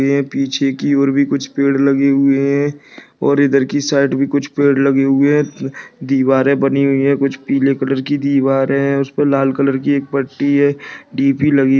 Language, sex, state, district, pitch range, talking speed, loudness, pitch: Hindi, male, Rajasthan, Churu, 135-140 Hz, 205 wpm, -15 LUFS, 140 Hz